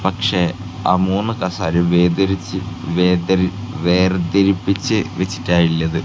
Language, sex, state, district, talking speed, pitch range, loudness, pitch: Malayalam, male, Kerala, Kasaragod, 90 wpm, 85-95 Hz, -17 LUFS, 90 Hz